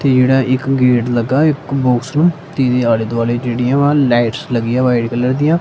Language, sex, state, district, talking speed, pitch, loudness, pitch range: Punjabi, male, Punjab, Kapurthala, 205 wpm, 130 Hz, -14 LUFS, 120-140 Hz